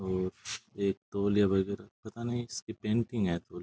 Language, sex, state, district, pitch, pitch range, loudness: Rajasthani, male, Rajasthan, Churu, 100 Hz, 95-110 Hz, -33 LUFS